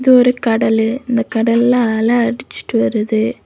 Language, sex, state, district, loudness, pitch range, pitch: Tamil, female, Tamil Nadu, Kanyakumari, -15 LUFS, 220-245 Hz, 230 Hz